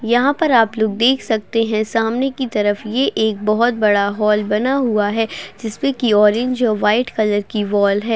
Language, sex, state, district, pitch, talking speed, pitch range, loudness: Hindi, female, Bihar, Begusarai, 220 Hz, 200 wpm, 210-245 Hz, -17 LUFS